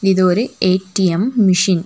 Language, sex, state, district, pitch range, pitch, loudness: Tamil, female, Tamil Nadu, Nilgiris, 185-195 Hz, 185 Hz, -15 LUFS